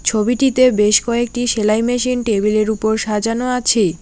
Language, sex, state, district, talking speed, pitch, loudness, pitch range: Bengali, female, West Bengal, Alipurduar, 135 wpm, 225 Hz, -16 LUFS, 215-245 Hz